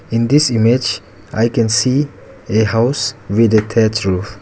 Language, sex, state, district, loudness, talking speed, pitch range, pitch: English, male, Arunachal Pradesh, Lower Dibang Valley, -15 LUFS, 165 wpm, 110-120 Hz, 115 Hz